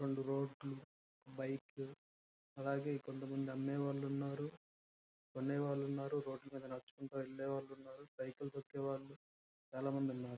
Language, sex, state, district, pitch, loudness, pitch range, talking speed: Telugu, male, Andhra Pradesh, Krishna, 135 Hz, -44 LUFS, 130-140 Hz, 80 wpm